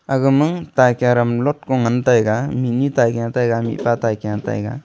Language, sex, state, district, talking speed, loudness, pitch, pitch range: Wancho, male, Arunachal Pradesh, Longding, 175 wpm, -18 LUFS, 120 Hz, 115-135 Hz